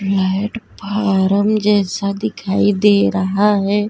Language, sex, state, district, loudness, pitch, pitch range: Hindi, female, Bihar, Vaishali, -16 LUFS, 200 Hz, 195-210 Hz